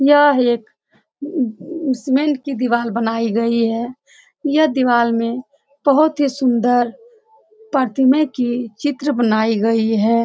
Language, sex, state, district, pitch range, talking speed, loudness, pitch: Hindi, female, Bihar, Saran, 235-290 Hz, 130 wpm, -17 LUFS, 255 Hz